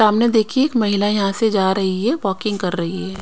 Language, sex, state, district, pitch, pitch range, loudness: Hindi, female, Haryana, Rohtak, 205 Hz, 190-220 Hz, -18 LUFS